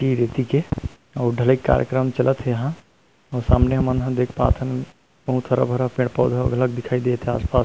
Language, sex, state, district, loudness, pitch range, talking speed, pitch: Chhattisgarhi, male, Chhattisgarh, Rajnandgaon, -21 LUFS, 125-130 Hz, 175 wpm, 125 Hz